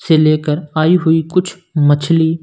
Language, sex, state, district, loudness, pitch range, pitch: Hindi, male, Punjab, Kapurthala, -14 LUFS, 155-165 Hz, 160 Hz